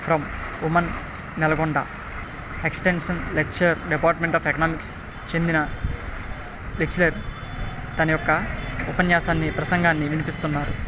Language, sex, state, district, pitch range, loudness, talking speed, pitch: Telugu, male, Telangana, Nalgonda, 130-165 Hz, -23 LUFS, 90 wpm, 155 Hz